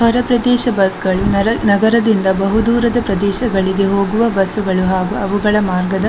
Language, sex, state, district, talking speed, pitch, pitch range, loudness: Kannada, female, Karnataka, Dakshina Kannada, 140 wpm, 200 Hz, 195-230 Hz, -14 LUFS